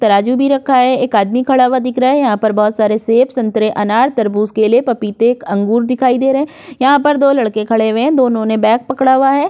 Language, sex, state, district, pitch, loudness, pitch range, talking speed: Hindi, female, Uttar Pradesh, Budaun, 245 Hz, -13 LUFS, 220-265 Hz, 245 wpm